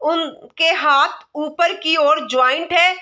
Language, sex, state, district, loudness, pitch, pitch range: Hindi, female, Bihar, Saharsa, -16 LUFS, 315 Hz, 300-335 Hz